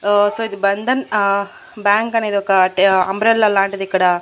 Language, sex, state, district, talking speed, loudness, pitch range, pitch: Telugu, female, Andhra Pradesh, Annamaya, 170 wpm, -16 LUFS, 195-215 Hz, 200 Hz